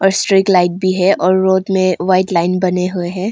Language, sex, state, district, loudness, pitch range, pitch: Hindi, female, Arunachal Pradesh, Longding, -14 LUFS, 180-190 Hz, 185 Hz